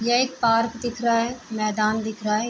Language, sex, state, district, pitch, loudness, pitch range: Hindi, female, Uttar Pradesh, Deoria, 230 Hz, -23 LUFS, 215-240 Hz